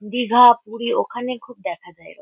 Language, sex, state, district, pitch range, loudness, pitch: Bengali, female, West Bengal, Kolkata, 210-245 Hz, -18 LUFS, 235 Hz